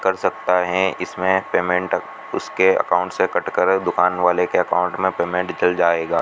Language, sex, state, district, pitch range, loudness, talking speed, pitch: Hindi, male, Rajasthan, Bikaner, 90-95 Hz, -19 LUFS, 185 wpm, 90 Hz